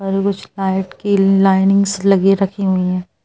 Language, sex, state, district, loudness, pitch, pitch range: Hindi, male, Madhya Pradesh, Bhopal, -15 LUFS, 195 Hz, 190-195 Hz